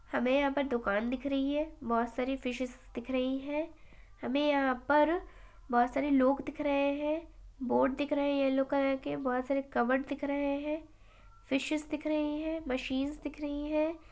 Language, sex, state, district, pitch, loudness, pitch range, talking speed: Hindi, female, Uttar Pradesh, Etah, 280 Hz, -32 LUFS, 260-295 Hz, 185 wpm